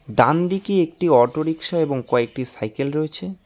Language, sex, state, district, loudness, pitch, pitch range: Bengali, male, West Bengal, Alipurduar, -20 LUFS, 155 Hz, 130-175 Hz